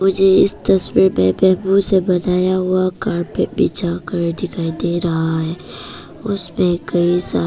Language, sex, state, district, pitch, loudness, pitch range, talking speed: Hindi, female, Arunachal Pradesh, Papum Pare, 180 Hz, -16 LUFS, 170-190 Hz, 145 wpm